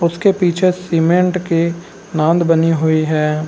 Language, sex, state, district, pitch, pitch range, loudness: Hindi, male, Bihar, Saran, 170 Hz, 160-180 Hz, -15 LUFS